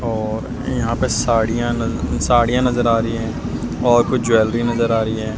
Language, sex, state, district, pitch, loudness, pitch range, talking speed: Hindi, male, Delhi, New Delhi, 115 Hz, -18 LUFS, 110-120 Hz, 190 wpm